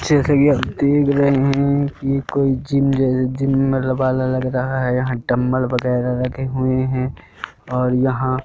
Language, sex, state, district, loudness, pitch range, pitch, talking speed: Hindi, male, Madhya Pradesh, Katni, -18 LUFS, 130-135 Hz, 130 Hz, 180 wpm